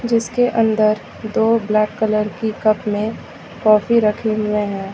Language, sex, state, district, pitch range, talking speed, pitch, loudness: Hindi, female, Uttar Pradesh, Lucknow, 210-225 Hz, 145 wpm, 215 Hz, -18 LUFS